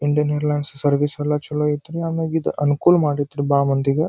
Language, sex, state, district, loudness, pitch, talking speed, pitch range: Kannada, male, Karnataka, Dharwad, -20 LUFS, 150 Hz, 160 wpm, 145-150 Hz